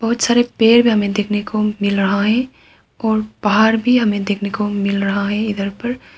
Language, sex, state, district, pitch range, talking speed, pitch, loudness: Hindi, female, Arunachal Pradesh, Papum Pare, 200-230 Hz, 195 wpm, 210 Hz, -16 LUFS